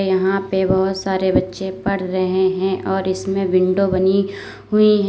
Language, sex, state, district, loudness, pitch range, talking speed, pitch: Hindi, female, Uttar Pradesh, Lalitpur, -18 LUFS, 190-195 Hz, 165 wpm, 190 Hz